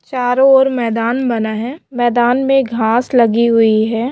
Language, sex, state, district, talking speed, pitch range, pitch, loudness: Hindi, female, Maharashtra, Aurangabad, 160 wpm, 230-260 Hz, 240 Hz, -14 LUFS